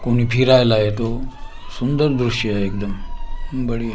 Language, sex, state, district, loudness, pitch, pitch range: Marathi, male, Maharashtra, Gondia, -19 LUFS, 120 Hz, 110-130 Hz